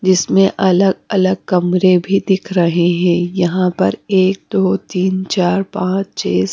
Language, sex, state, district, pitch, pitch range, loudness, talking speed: Hindi, female, Punjab, Fazilka, 185 Hz, 180-190 Hz, -15 LUFS, 155 wpm